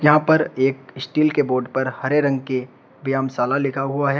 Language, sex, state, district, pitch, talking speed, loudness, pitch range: Hindi, male, Uttar Pradesh, Shamli, 135 Hz, 215 wpm, -20 LUFS, 130-145 Hz